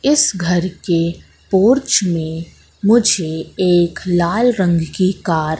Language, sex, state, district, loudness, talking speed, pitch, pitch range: Hindi, female, Madhya Pradesh, Katni, -16 LUFS, 130 wpm, 180 Hz, 170-210 Hz